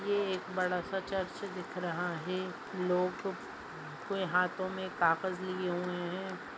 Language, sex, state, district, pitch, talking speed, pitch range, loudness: Hindi, female, Maharashtra, Nagpur, 185 Hz, 145 wpm, 180-190 Hz, -35 LUFS